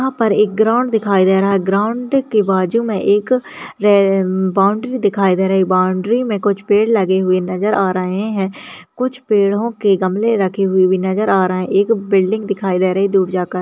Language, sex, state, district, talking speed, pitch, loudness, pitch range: Hindi, female, Uttar Pradesh, Deoria, 200 wpm, 200 Hz, -15 LUFS, 190-215 Hz